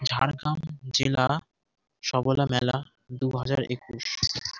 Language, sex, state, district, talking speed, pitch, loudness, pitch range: Bengali, male, West Bengal, Jhargram, 90 wpm, 130 Hz, -27 LUFS, 125-140 Hz